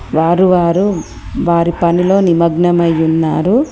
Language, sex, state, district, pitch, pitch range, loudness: Telugu, female, Telangana, Komaram Bheem, 170 Hz, 170-180 Hz, -12 LUFS